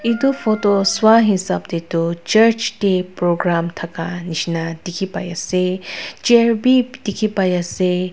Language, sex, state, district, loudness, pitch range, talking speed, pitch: Nagamese, female, Nagaland, Dimapur, -18 LUFS, 175-220 Hz, 110 wpm, 190 Hz